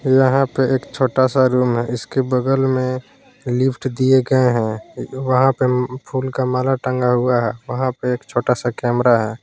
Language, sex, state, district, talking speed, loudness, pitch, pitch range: Hindi, male, Jharkhand, Palamu, 185 wpm, -18 LUFS, 130 Hz, 125-130 Hz